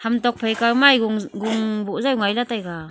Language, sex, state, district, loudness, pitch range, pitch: Wancho, female, Arunachal Pradesh, Longding, -20 LUFS, 215-240 Hz, 225 Hz